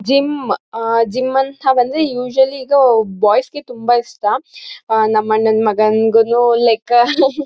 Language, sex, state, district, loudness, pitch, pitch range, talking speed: Kannada, female, Karnataka, Mysore, -14 LUFS, 240 Hz, 225-270 Hz, 120 wpm